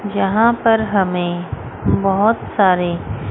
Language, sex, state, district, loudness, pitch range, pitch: Hindi, female, Chandigarh, Chandigarh, -17 LUFS, 175-220 Hz, 195 Hz